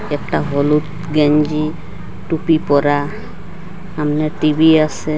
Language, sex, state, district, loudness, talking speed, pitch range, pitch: Bengali, female, Assam, Hailakandi, -16 LUFS, 95 wpm, 145-160 Hz, 155 Hz